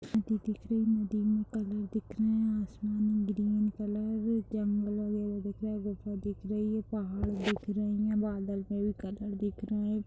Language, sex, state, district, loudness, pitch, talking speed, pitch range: Hindi, female, Uttar Pradesh, Deoria, -33 LUFS, 210 Hz, 195 wpm, 205-215 Hz